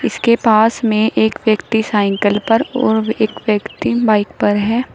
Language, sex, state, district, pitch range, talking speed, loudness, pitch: Hindi, female, Uttar Pradesh, Shamli, 210-230 Hz, 155 wpm, -15 LUFS, 220 Hz